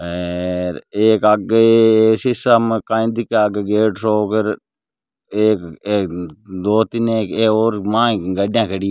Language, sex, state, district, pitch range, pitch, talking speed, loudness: Marwari, male, Rajasthan, Nagaur, 100-115 Hz, 105 Hz, 120 wpm, -16 LUFS